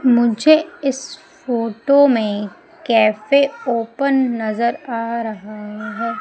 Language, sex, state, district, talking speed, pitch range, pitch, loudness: Hindi, female, Madhya Pradesh, Umaria, 95 wpm, 225-275 Hz, 235 Hz, -18 LUFS